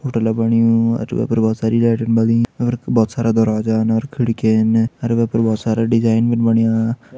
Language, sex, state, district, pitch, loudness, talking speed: Hindi, male, Uttarakhand, Uttarkashi, 115 Hz, -16 LUFS, 200 wpm